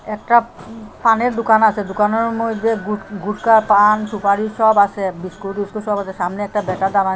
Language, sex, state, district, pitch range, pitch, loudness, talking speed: Bengali, female, Assam, Hailakandi, 200-220 Hz, 210 Hz, -17 LUFS, 170 wpm